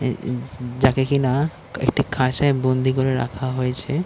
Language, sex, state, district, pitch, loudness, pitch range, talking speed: Bengali, male, West Bengal, Dakshin Dinajpur, 130 Hz, -21 LUFS, 130-135 Hz, 160 wpm